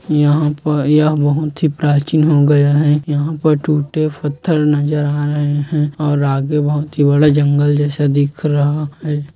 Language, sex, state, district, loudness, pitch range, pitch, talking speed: Hindi, male, Chhattisgarh, Kabirdham, -15 LUFS, 145-150 Hz, 150 Hz, 175 wpm